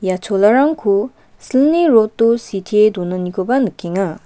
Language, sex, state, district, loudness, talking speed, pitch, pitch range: Garo, female, Meghalaya, West Garo Hills, -15 LUFS, 100 wpm, 210 Hz, 190-240 Hz